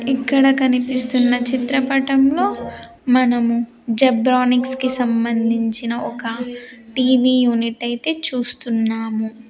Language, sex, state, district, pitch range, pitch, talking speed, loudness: Telugu, female, Andhra Pradesh, Sri Satya Sai, 235-260 Hz, 250 Hz, 75 wpm, -18 LUFS